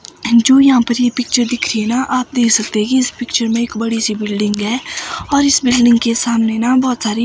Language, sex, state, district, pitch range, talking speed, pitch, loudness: Hindi, female, Himachal Pradesh, Shimla, 230-255 Hz, 240 wpm, 240 Hz, -14 LUFS